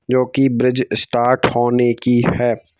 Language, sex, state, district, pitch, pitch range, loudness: Hindi, male, Madhya Pradesh, Bhopal, 120 Hz, 120-125 Hz, -16 LUFS